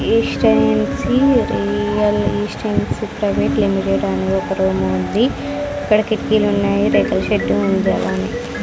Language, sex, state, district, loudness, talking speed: Telugu, female, Andhra Pradesh, Sri Satya Sai, -17 LUFS, 110 wpm